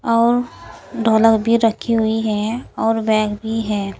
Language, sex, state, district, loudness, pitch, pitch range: Hindi, female, Uttar Pradesh, Saharanpur, -18 LUFS, 225 Hz, 215-230 Hz